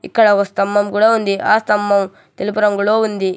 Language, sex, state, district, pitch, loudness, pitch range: Telugu, male, Telangana, Hyderabad, 205 Hz, -15 LUFS, 200-215 Hz